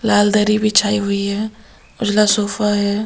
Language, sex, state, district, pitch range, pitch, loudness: Hindi, female, Bihar, Katihar, 205-215 Hz, 210 Hz, -16 LUFS